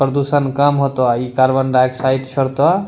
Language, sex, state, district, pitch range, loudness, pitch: Angika, male, Bihar, Bhagalpur, 130-140 Hz, -16 LUFS, 135 Hz